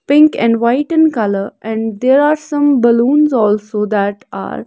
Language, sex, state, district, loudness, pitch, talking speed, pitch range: English, female, Haryana, Rohtak, -13 LUFS, 235 Hz, 165 wpm, 215-290 Hz